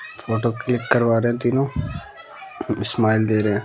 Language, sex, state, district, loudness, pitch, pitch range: Hindi, male, Bihar, West Champaran, -21 LUFS, 115 Hz, 110-120 Hz